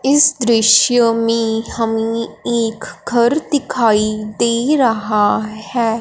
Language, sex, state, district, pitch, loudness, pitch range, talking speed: Hindi, male, Punjab, Fazilka, 230 Hz, -15 LUFS, 220-240 Hz, 100 wpm